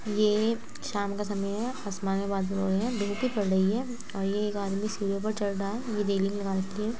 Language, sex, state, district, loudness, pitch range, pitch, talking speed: Hindi, female, Uttar Pradesh, Muzaffarnagar, -29 LUFS, 195-215 Hz, 205 Hz, 265 wpm